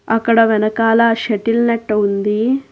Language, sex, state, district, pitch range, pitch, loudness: Telugu, female, Telangana, Hyderabad, 215-230 Hz, 225 Hz, -15 LUFS